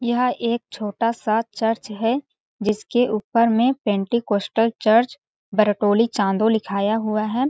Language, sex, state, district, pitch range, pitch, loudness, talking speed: Hindi, female, Chhattisgarh, Balrampur, 215-235 Hz, 225 Hz, -21 LUFS, 130 wpm